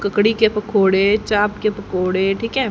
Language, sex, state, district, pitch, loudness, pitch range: Hindi, female, Haryana, Jhajjar, 205 Hz, -17 LUFS, 195-215 Hz